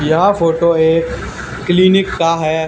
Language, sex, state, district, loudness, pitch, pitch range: Hindi, male, Haryana, Charkhi Dadri, -13 LUFS, 165 Hz, 160-185 Hz